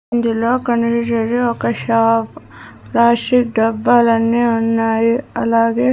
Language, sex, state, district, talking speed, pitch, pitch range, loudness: Telugu, female, Andhra Pradesh, Sri Satya Sai, 80 wpm, 235 Hz, 230-240 Hz, -15 LUFS